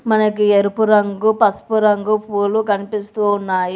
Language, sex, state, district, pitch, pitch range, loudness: Telugu, female, Telangana, Hyderabad, 210 Hz, 205-215 Hz, -16 LUFS